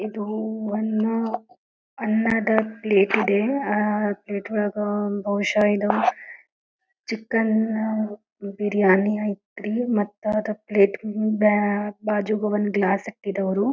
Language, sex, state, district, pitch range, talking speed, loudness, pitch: Kannada, female, Karnataka, Belgaum, 205-220 Hz, 85 wpm, -23 LUFS, 210 Hz